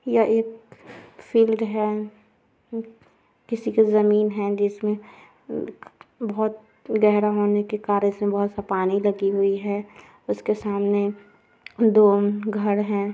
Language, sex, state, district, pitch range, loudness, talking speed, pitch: Hindi, female, Bihar, Muzaffarpur, 205-220 Hz, -22 LUFS, 130 wpm, 210 Hz